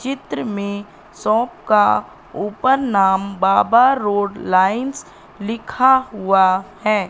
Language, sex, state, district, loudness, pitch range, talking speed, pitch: Hindi, female, Madhya Pradesh, Katni, -17 LUFS, 195-245 Hz, 100 wpm, 205 Hz